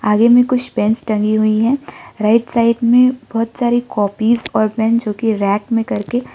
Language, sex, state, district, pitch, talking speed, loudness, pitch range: Hindi, male, Arunachal Pradesh, Lower Dibang Valley, 230 Hz, 190 wpm, -15 LUFS, 215-240 Hz